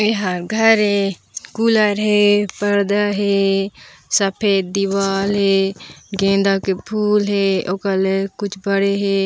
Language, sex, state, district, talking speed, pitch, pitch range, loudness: Chhattisgarhi, female, Chhattisgarh, Raigarh, 115 wpm, 200 Hz, 195-205 Hz, -17 LUFS